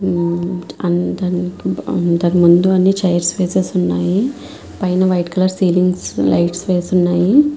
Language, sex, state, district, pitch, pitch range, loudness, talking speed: Telugu, female, Andhra Pradesh, Visakhapatnam, 180 Hz, 175-185 Hz, -16 LUFS, 110 wpm